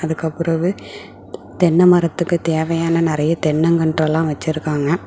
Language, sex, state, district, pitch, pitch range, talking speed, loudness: Tamil, female, Tamil Nadu, Kanyakumari, 165 Hz, 160-170 Hz, 95 wpm, -17 LUFS